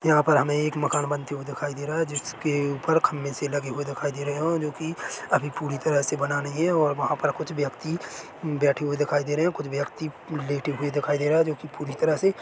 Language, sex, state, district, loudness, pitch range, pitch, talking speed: Hindi, male, Chhattisgarh, Rajnandgaon, -26 LUFS, 145-155 Hz, 145 Hz, 265 wpm